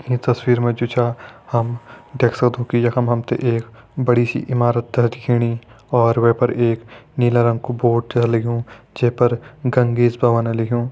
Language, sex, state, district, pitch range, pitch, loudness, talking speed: Hindi, male, Uttarakhand, Tehri Garhwal, 115-125 Hz, 120 Hz, -18 LUFS, 175 wpm